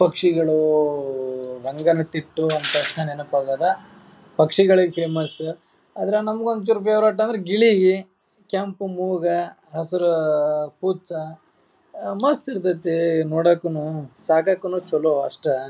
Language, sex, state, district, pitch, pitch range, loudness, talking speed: Kannada, male, Karnataka, Raichur, 170 Hz, 155-195 Hz, -21 LUFS, 90 wpm